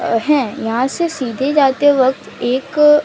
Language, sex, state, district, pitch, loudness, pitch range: Hindi, female, Odisha, Sambalpur, 270 Hz, -15 LUFS, 245-295 Hz